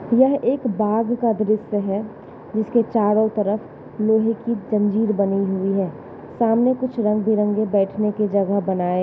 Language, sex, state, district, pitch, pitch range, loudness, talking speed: Hindi, female, Uttar Pradesh, Jalaun, 215 Hz, 200-225 Hz, -20 LUFS, 155 wpm